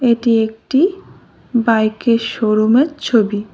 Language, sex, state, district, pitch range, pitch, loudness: Bengali, female, West Bengal, Cooch Behar, 220-245 Hz, 230 Hz, -15 LUFS